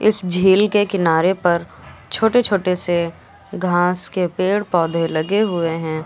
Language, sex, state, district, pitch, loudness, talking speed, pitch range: Hindi, female, Uttar Pradesh, Lucknow, 180 Hz, -17 LUFS, 150 wpm, 170-200 Hz